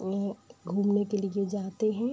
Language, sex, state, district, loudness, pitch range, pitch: Hindi, female, Uttar Pradesh, Budaun, -30 LUFS, 195-215 Hz, 200 Hz